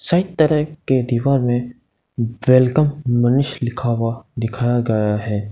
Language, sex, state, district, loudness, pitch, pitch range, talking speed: Hindi, male, Arunachal Pradesh, Lower Dibang Valley, -18 LUFS, 120 Hz, 115-140 Hz, 130 wpm